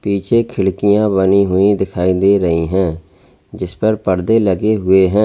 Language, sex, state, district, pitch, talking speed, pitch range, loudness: Hindi, male, Uttar Pradesh, Lalitpur, 95 Hz, 160 wpm, 95-105 Hz, -14 LUFS